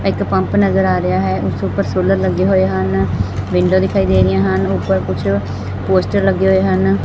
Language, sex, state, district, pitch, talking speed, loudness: Punjabi, female, Punjab, Fazilka, 95 Hz, 195 wpm, -15 LUFS